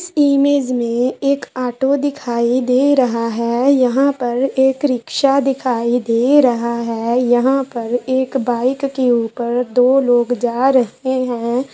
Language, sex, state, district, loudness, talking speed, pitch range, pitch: Hindi, female, West Bengal, Purulia, -16 LUFS, 140 wpm, 240-270 Hz, 250 Hz